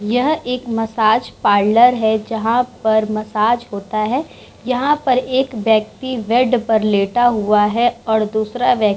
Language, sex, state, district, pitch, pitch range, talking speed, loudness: Hindi, female, Bihar, Vaishali, 225 Hz, 215-250 Hz, 155 wpm, -16 LUFS